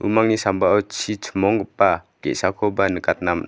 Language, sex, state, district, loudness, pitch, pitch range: Garo, male, Meghalaya, West Garo Hills, -20 LUFS, 105 Hz, 95-105 Hz